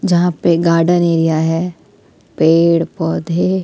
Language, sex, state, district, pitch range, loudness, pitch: Hindi, female, Delhi, New Delhi, 165-175 Hz, -14 LUFS, 170 Hz